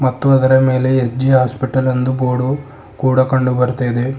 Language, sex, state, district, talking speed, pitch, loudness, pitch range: Kannada, male, Karnataka, Bidar, 155 wpm, 130 Hz, -15 LUFS, 125-130 Hz